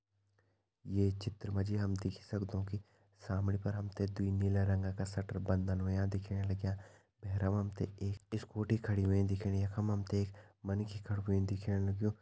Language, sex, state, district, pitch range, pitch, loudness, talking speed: Hindi, male, Uttarakhand, Tehri Garhwal, 95-105 Hz, 100 Hz, -37 LUFS, 190 wpm